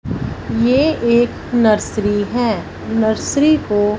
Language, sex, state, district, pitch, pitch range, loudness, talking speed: Hindi, female, Punjab, Fazilka, 230 Hz, 210-245 Hz, -16 LUFS, 90 wpm